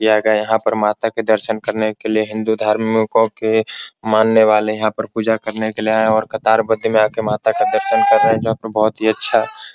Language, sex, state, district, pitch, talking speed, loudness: Hindi, male, Bihar, Supaul, 110 Hz, 265 wpm, -16 LUFS